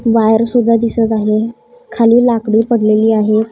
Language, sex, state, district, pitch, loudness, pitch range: Marathi, female, Maharashtra, Gondia, 225 Hz, -12 LUFS, 220-235 Hz